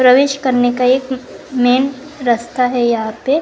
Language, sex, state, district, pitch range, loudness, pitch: Hindi, female, Karnataka, Bangalore, 245-270 Hz, -15 LUFS, 255 Hz